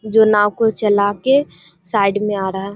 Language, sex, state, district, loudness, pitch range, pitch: Hindi, female, Bihar, Saharsa, -16 LUFS, 195-220 Hz, 205 Hz